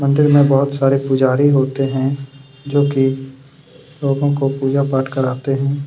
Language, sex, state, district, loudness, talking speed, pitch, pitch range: Hindi, male, Chhattisgarh, Kabirdham, -16 LUFS, 145 wpm, 135 Hz, 135-140 Hz